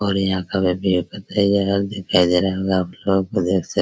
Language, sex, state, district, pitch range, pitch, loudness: Hindi, male, Bihar, Araria, 95-100 Hz, 95 Hz, -20 LUFS